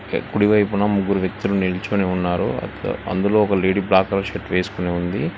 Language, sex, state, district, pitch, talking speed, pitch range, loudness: Telugu, male, Telangana, Hyderabad, 95 Hz, 155 wpm, 90-100 Hz, -20 LUFS